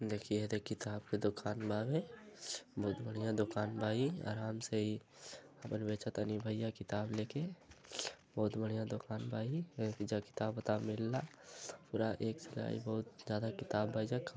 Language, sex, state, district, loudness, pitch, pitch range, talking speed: Bhojpuri, male, Uttar Pradesh, Gorakhpur, -40 LUFS, 110 Hz, 105-115 Hz, 165 wpm